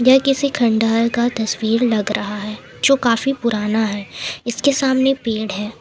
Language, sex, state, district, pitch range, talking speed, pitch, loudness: Hindi, female, Jharkhand, Palamu, 215-260 Hz, 165 wpm, 230 Hz, -18 LUFS